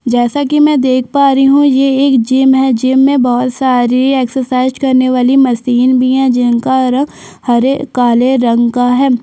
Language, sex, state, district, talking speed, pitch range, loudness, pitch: Hindi, female, Chhattisgarh, Sukma, 190 wpm, 245-270 Hz, -11 LUFS, 260 Hz